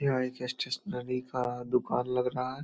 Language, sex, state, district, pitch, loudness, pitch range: Hindi, male, Bihar, Samastipur, 125 Hz, -32 LUFS, 125-130 Hz